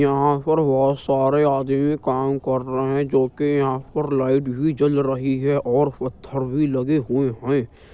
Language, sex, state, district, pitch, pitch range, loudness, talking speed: Hindi, male, Uttar Pradesh, Jyotiba Phule Nagar, 135 Hz, 130-145 Hz, -21 LUFS, 180 wpm